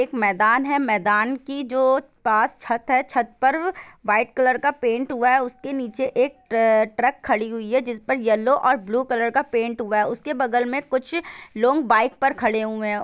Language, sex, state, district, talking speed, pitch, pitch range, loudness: Hindi, female, Bihar, Gopalganj, 215 wpm, 250 Hz, 230-270 Hz, -21 LUFS